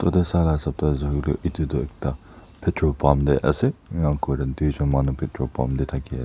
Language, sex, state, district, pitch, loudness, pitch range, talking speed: Nagamese, male, Nagaland, Dimapur, 75 Hz, -23 LUFS, 70-80 Hz, 210 wpm